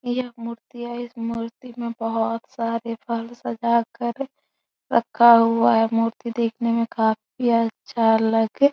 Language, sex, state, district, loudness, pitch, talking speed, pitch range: Hindi, female, Uttar Pradesh, Etah, -22 LUFS, 230 Hz, 145 wpm, 230-240 Hz